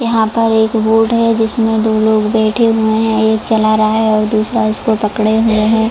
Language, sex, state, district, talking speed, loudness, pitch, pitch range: Hindi, female, Jharkhand, Jamtara, 215 wpm, -12 LUFS, 220 Hz, 215-225 Hz